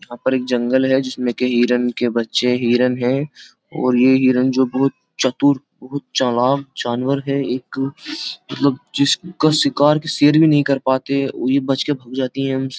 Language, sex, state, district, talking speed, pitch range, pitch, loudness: Hindi, male, Uttar Pradesh, Jyotiba Phule Nagar, 190 wpm, 125-140 Hz, 130 Hz, -18 LUFS